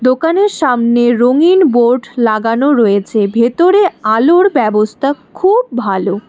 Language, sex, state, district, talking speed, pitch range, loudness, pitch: Bengali, female, West Bengal, Alipurduar, 105 wpm, 220-325 Hz, -11 LUFS, 245 Hz